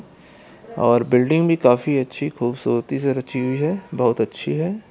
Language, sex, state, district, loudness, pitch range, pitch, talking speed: Hindi, male, Bihar, Gopalganj, -20 LUFS, 125-160 Hz, 135 Hz, 160 wpm